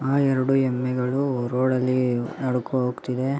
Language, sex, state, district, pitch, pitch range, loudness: Kannada, male, Karnataka, Mysore, 130 Hz, 125-135 Hz, -23 LUFS